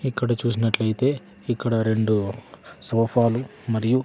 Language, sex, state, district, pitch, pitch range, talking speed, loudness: Telugu, male, Andhra Pradesh, Sri Satya Sai, 115 Hz, 110-120 Hz, 90 wpm, -23 LUFS